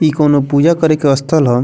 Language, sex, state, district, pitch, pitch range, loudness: Bhojpuri, male, Bihar, Muzaffarpur, 150 Hz, 140-155 Hz, -12 LUFS